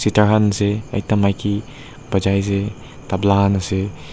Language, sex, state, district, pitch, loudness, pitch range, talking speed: Nagamese, male, Nagaland, Dimapur, 100 Hz, -19 LUFS, 100-105 Hz, 130 wpm